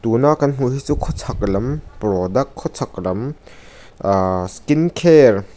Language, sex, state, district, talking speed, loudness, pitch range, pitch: Mizo, male, Mizoram, Aizawl, 150 wpm, -18 LUFS, 95-145 Hz, 115 Hz